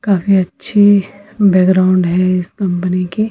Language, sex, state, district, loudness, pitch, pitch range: Hindi, female, Himachal Pradesh, Shimla, -13 LUFS, 185 Hz, 185-200 Hz